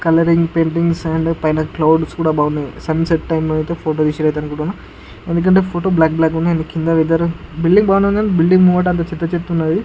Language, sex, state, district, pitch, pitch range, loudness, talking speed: Telugu, male, Andhra Pradesh, Guntur, 165 Hz, 160-170 Hz, -16 LUFS, 195 wpm